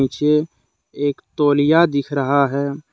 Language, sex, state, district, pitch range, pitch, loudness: Hindi, male, Jharkhand, Deoghar, 140-150 Hz, 145 Hz, -18 LUFS